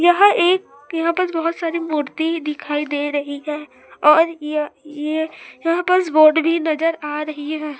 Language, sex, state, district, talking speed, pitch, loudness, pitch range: Hindi, female, Chhattisgarh, Raipur, 170 wpm, 310 Hz, -19 LUFS, 300-335 Hz